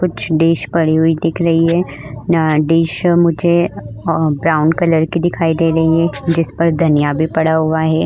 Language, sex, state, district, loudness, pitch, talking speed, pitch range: Hindi, female, Uttar Pradesh, Budaun, -14 LUFS, 165 Hz, 180 wpm, 160-165 Hz